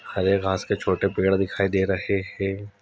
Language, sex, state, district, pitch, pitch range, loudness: Hindi, male, Uttar Pradesh, Etah, 95 Hz, 95-100 Hz, -24 LUFS